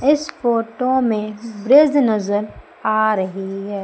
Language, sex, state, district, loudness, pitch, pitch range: Hindi, female, Madhya Pradesh, Umaria, -18 LUFS, 220 Hz, 205-255 Hz